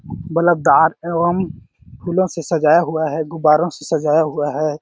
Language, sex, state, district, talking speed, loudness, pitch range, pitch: Hindi, male, Chhattisgarh, Balrampur, 160 wpm, -17 LUFS, 155-170 Hz, 160 Hz